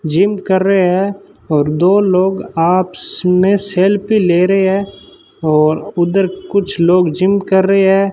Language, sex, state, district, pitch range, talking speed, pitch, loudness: Hindi, male, Rajasthan, Bikaner, 180-195 Hz, 155 wpm, 190 Hz, -13 LUFS